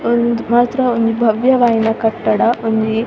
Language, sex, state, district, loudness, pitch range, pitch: Tulu, female, Karnataka, Dakshina Kannada, -15 LUFS, 225-240 Hz, 230 Hz